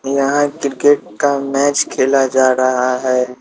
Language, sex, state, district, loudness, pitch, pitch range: Hindi, male, Bihar, Patna, -15 LUFS, 135 Hz, 130-140 Hz